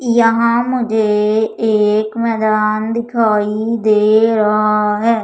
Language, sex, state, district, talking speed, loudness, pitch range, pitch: Hindi, female, Madhya Pradesh, Umaria, 90 wpm, -14 LUFS, 215-230 Hz, 220 Hz